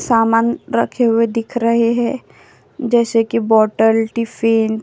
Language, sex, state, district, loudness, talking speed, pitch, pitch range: Hindi, female, Uttar Pradesh, Jyotiba Phule Nagar, -16 LUFS, 135 wpm, 230 Hz, 225-235 Hz